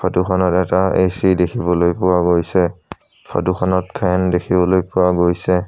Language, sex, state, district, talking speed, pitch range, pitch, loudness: Assamese, male, Assam, Sonitpur, 115 wpm, 90-95 Hz, 90 Hz, -16 LUFS